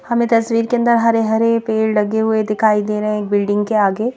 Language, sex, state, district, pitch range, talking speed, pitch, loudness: Hindi, female, Madhya Pradesh, Bhopal, 210-230 Hz, 230 wpm, 220 Hz, -16 LUFS